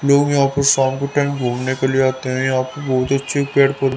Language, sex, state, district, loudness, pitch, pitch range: Hindi, male, Haryana, Rohtak, -17 LUFS, 135 Hz, 130-140 Hz